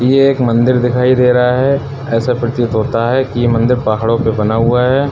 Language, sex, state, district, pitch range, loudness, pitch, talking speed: Hindi, male, Uttar Pradesh, Budaun, 115-130 Hz, -13 LUFS, 125 Hz, 220 wpm